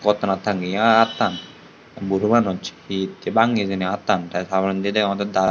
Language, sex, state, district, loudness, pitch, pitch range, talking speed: Chakma, male, Tripura, Unakoti, -21 LUFS, 100 Hz, 95-105 Hz, 140 wpm